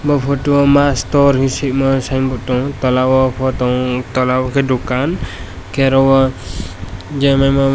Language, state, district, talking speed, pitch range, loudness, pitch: Kokborok, Tripura, West Tripura, 160 wpm, 125-135 Hz, -14 LUFS, 130 Hz